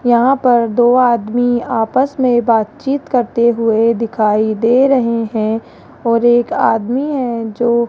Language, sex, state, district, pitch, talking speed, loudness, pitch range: Hindi, female, Rajasthan, Jaipur, 235 Hz, 145 wpm, -14 LUFS, 230-250 Hz